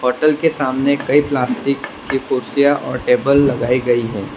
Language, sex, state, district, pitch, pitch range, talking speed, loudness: Hindi, male, Gujarat, Valsad, 135 Hz, 125-140 Hz, 165 wpm, -16 LUFS